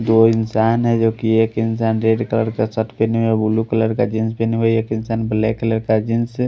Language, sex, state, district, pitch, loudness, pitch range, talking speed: Hindi, male, Haryana, Rohtak, 110 Hz, -18 LUFS, 110-115 Hz, 225 wpm